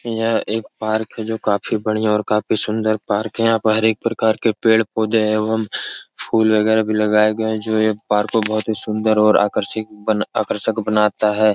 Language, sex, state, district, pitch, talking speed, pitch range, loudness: Hindi, male, Uttar Pradesh, Etah, 110 Hz, 210 wpm, 105-110 Hz, -18 LUFS